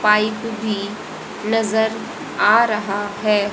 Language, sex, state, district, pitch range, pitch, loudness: Hindi, female, Haryana, Jhajjar, 205-220 Hz, 215 Hz, -19 LUFS